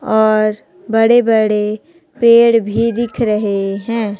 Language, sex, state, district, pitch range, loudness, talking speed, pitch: Hindi, female, Chhattisgarh, Raipur, 210-235 Hz, -14 LUFS, 115 wpm, 225 Hz